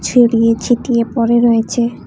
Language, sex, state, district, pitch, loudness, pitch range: Bengali, female, Tripura, West Tripura, 235 Hz, -13 LUFS, 230-240 Hz